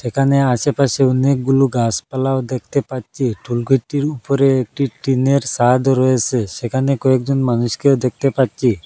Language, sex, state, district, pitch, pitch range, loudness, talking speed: Bengali, male, Assam, Hailakandi, 130 Hz, 125-135 Hz, -17 LUFS, 120 wpm